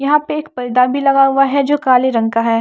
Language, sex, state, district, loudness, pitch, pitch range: Hindi, female, Maharashtra, Washim, -14 LUFS, 270 Hz, 250-280 Hz